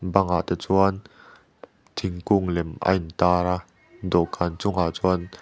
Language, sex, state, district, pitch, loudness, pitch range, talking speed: Mizo, male, Mizoram, Aizawl, 90 Hz, -24 LUFS, 90-95 Hz, 135 wpm